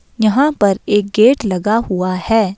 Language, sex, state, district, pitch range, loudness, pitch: Hindi, female, Himachal Pradesh, Shimla, 195-225 Hz, -14 LUFS, 210 Hz